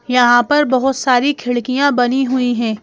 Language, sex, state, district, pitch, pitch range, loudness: Hindi, female, Madhya Pradesh, Bhopal, 255 Hz, 245-270 Hz, -14 LUFS